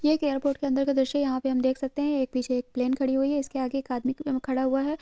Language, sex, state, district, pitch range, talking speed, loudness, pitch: Hindi, female, Uttarakhand, Uttarkashi, 260-280 Hz, 335 wpm, -27 LUFS, 270 Hz